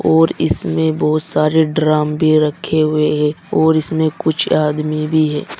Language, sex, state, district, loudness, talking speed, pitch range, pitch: Hindi, male, Uttar Pradesh, Saharanpur, -15 LUFS, 160 wpm, 150-160 Hz, 155 Hz